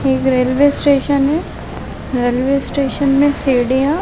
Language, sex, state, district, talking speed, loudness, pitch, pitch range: Hindi, female, Chhattisgarh, Balrampur, 135 wpm, -15 LUFS, 275 Hz, 260-285 Hz